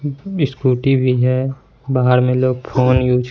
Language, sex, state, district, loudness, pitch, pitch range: Hindi, male, Bihar, Katihar, -16 LUFS, 130 Hz, 125-135 Hz